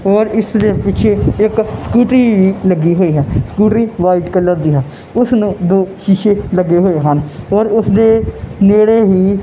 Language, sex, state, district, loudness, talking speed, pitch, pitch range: Punjabi, male, Punjab, Kapurthala, -12 LUFS, 160 wpm, 195 Hz, 180-215 Hz